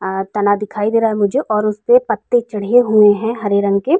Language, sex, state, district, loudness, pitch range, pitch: Hindi, female, Uttar Pradesh, Jalaun, -15 LUFS, 205-235 Hz, 215 Hz